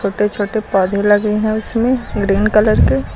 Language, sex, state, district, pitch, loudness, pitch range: Hindi, female, Uttar Pradesh, Lucknow, 210 Hz, -15 LUFS, 200-215 Hz